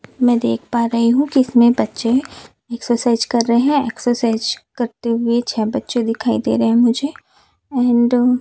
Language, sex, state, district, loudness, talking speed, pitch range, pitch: Hindi, female, Chhattisgarh, Raipur, -17 LUFS, 170 wpm, 235-250 Hz, 240 Hz